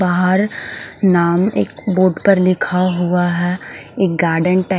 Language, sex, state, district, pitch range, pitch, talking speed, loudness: Hindi, male, Punjab, Fazilka, 175-190 Hz, 185 Hz, 150 wpm, -16 LUFS